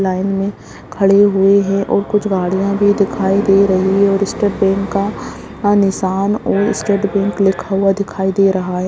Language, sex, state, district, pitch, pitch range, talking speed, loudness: Hindi, female, Bihar, Lakhisarai, 195 Hz, 195-200 Hz, 175 wpm, -15 LUFS